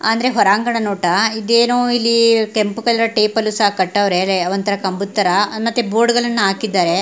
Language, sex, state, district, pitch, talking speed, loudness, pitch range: Kannada, female, Karnataka, Mysore, 220 Hz, 160 wpm, -16 LUFS, 200-230 Hz